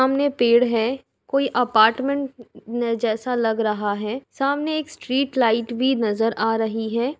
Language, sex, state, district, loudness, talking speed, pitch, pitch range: Hindi, female, Uttar Pradesh, Jalaun, -21 LUFS, 150 wpm, 240 Hz, 225-270 Hz